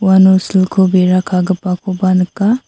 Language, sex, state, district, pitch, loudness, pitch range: Garo, female, Meghalaya, South Garo Hills, 185 Hz, -13 LUFS, 185-190 Hz